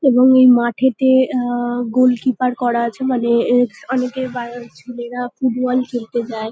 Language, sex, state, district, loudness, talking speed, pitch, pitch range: Bengali, female, West Bengal, North 24 Parganas, -17 LUFS, 140 wpm, 245 Hz, 240-255 Hz